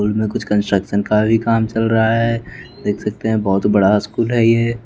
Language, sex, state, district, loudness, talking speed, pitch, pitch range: Hindi, male, Bihar, West Champaran, -17 LUFS, 235 wpm, 110 Hz, 105-115 Hz